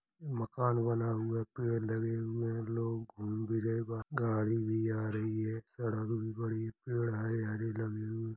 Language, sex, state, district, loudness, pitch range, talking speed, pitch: Hindi, male, Uttar Pradesh, Hamirpur, -36 LUFS, 110-115 Hz, 195 wpm, 115 Hz